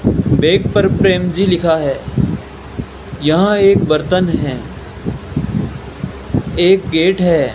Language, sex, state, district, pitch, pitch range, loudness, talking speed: Hindi, male, Rajasthan, Bikaner, 180 Hz, 155-190 Hz, -14 LUFS, 105 wpm